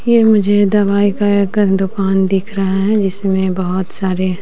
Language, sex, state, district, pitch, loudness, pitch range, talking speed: Hindi, female, Bihar, West Champaran, 195 Hz, -14 LUFS, 190-205 Hz, 165 wpm